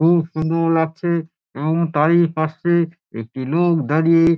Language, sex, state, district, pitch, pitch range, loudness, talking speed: Bengali, male, West Bengal, Dakshin Dinajpur, 165 Hz, 155-170 Hz, -19 LUFS, 135 wpm